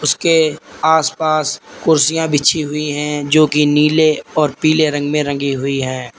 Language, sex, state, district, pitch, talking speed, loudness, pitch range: Hindi, male, Uttar Pradesh, Lalitpur, 150 Hz, 165 wpm, -15 LUFS, 145-155 Hz